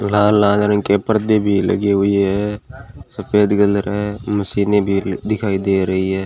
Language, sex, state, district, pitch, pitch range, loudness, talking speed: Hindi, male, Rajasthan, Bikaner, 100 Hz, 100-105 Hz, -17 LUFS, 175 wpm